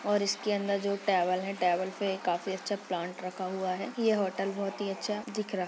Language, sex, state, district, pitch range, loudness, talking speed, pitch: Hindi, female, Bihar, Purnia, 185-205 Hz, -31 LUFS, 220 wpm, 195 Hz